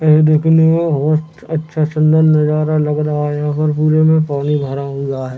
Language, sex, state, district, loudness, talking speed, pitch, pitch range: Hindi, male, Chhattisgarh, Raigarh, -14 LUFS, 210 wpm, 155 Hz, 150-155 Hz